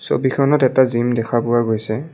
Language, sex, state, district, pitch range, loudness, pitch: Assamese, male, Assam, Kamrup Metropolitan, 115-130 Hz, -17 LUFS, 120 Hz